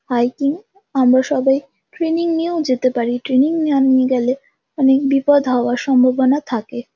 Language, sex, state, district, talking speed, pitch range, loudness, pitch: Bengali, female, West Bengal, Jhargram, 140 wpm, 255-290 Hz, -17 LUFS, 270 Hz